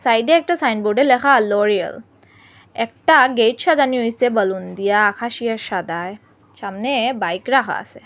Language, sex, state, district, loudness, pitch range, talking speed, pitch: Bengali, female, Assam, Hailakandi, -17 LUFS, 190-250 Hz, 140 wpm, 225 Hz